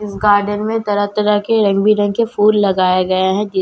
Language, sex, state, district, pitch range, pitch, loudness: Hindi, female, Bihar, Katihar, 195-210 Hz, 205 Hz, -15 LUFS